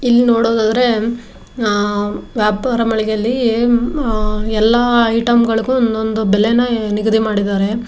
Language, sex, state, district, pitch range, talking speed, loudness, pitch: Kannada, female, Karnataka, Dharwad, 215-235 Hz, 100 wpm, -15 LUFS, 225 Hz